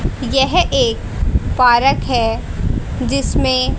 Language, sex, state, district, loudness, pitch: Hindi, female, Haryana, Rohtak, -16 LUFS, 235 Hz